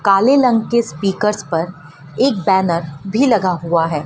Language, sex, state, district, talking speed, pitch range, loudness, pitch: Hindi, female, Madhya Pradesh, Dhar, 160 wpm, 165-225 Hz, -16 LUFS, 190 Hz